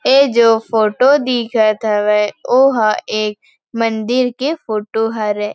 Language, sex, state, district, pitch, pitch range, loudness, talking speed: Chhattisgarhi, female, Chhattisgarh, Rajnandgaon, 225 Hz, 215-250 Hz, -15 LUFS, 120 wpm